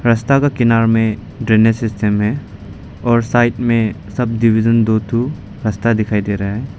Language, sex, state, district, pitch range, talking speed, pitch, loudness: Hindi, male, Arunachal Pradesh, Lower Dibang Valley, 105-120 Hz, 170 wpm, 115 Hz, -15 LUFS